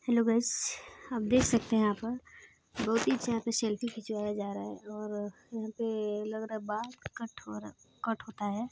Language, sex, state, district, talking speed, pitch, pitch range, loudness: Hindi, female, Chhattisgarh, Balrampur, 205 wpm, 220 Hz, 210-235 Hz, -33 LUFS